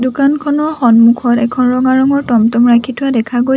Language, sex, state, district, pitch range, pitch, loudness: Assamese, female, Assam, Sonitpur, 240-275 Hz, 250 Hz, -11 LUFS